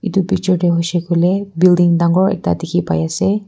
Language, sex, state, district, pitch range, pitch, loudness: Nagamese, female, Nagaland, Kohima, 170-190 Hz, 180 Hz, -15 LUFS